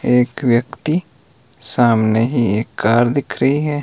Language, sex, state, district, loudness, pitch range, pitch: Hindi, male, Himachal Pradesh, Shimla, -17 LUFS, 115-140 Hz, 125 Hz